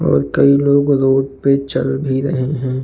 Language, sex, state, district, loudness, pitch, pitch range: Hindi, male, Uttar Pradesh, Jalaun, -15 LUFS, 135 Hz, 130-140 Hz